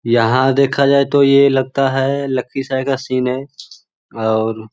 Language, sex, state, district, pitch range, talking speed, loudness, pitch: Magahi, male, Bihar, Lakhisarai, 125-140 Hz, 165 wpm, -15 LUFS, 135 Hz